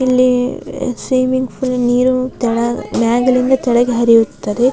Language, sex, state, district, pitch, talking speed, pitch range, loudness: Kannada, female, Karnataka, Raichur, 250 Hz, 100 wpm, 240-255 Hz, -15 LUFS